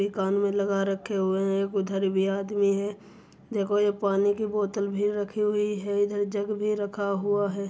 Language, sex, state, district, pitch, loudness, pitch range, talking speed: Hindi, female, Uttar Pradesh, Muzaffarnagar, 200 Hz, -27 LUFS, 195-205 Hz, 210 wpm